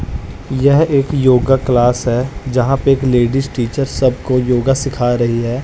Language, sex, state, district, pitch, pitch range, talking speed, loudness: Hindi, male, Punjab, Kapurthala, 130 Hz, 120-135 Hz, 170 wpm, -14 LUFS